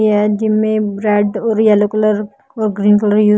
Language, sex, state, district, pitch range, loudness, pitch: Hindi, female, Haryana, Jhajjar, 210-215 Hz, -14 LUFS, 210 Hz